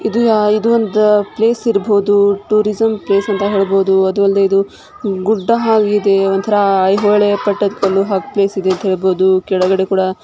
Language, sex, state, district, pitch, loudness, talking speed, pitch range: Kannada, female, Karnataka, Shimoga, 200 Hz, -14 LUFS, 140 wpm, 195-210 Hz